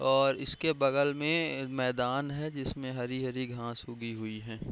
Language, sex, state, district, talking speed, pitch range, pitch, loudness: Hindi, male, Bihar, Bhagalpur, 150 wpm, 120-140 Hz, 130 Hz, -32 LUFS